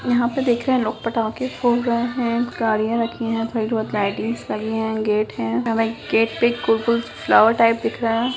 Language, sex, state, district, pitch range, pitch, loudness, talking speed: Hindi, female, Bihar, Sitamarhi, 225-240 Hz, 230 Hz, -20 LUFS, 200 wpm